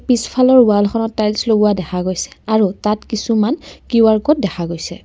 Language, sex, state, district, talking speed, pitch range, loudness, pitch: Assamese, female, Assam, Kamrup Metropolitan, 155 wpm, 205-230 Hz, -15 LUFS, 215 Hz